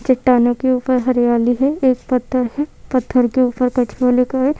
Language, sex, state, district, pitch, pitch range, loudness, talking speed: Hindi, female, Madhya Pradesh, Bhopal, 255 Hz, 250-260 Hz, -16 LUFS, 185 wpm